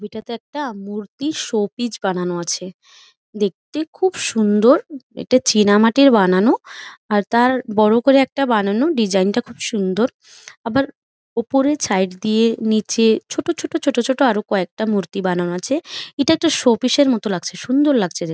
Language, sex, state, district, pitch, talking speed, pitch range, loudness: Bengali, female, West Bengal, Malda, 230 Hz, 150 wpm, 205-275 Hz, -18 LUFS